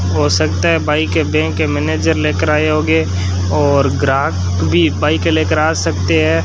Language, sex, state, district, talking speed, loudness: Hindi, male, Rajasthan, Bikaner, 165 wpm, -14 LUFS